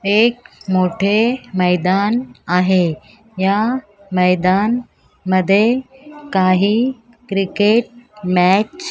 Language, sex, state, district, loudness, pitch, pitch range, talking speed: Marathi, female, Maharashtra, Mumbai Suburban, -16 LUFS, 205 Hz, 185-235 Hz, 75 wpm